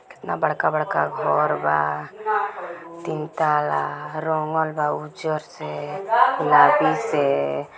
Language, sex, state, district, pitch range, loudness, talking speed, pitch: Bhojpuri, female, Bihar, Gopalganj, 145-160 Hz, -22 LUFS, 95 wpm, 155 Hz